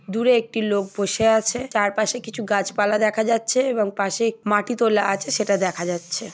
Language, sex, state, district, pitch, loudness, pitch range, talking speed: Bengali, female, West Bengal, Paschim Medinipur, 215 Hz, -21 LUFS, 200-230 Hz, 170 wpm